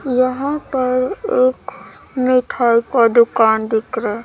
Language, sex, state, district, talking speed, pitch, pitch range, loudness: Hindi, female, Chhattisgarh, Raipur, 125 wpm, 255 Hz, 230-270 Hz, -16 LUFS